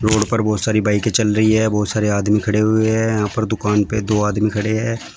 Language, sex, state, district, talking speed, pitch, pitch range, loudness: Hindi, male, Uttar Pradesh, Shamli, 255 wpm, 110 Hz, 105-110 Hz, -17 LUFS